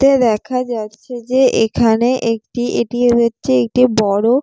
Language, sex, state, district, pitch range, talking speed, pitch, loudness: Bengali, female, West Bengal, Jalpaiguri, 225-250 Hz, 135 wpm, 240 Hz, -15 LUFS